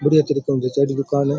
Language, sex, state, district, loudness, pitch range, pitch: Rajasthani, male, Rajasthan, Churu, -19 LUFS, 140-145 Hz, 140 Hz